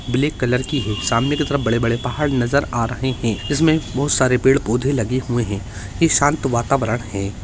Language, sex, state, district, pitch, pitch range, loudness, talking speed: Hindi, male, Uttarakhand, Uttarkashi, 125 Hz, 115-140 Hz, -19 LUFS, 200 wpm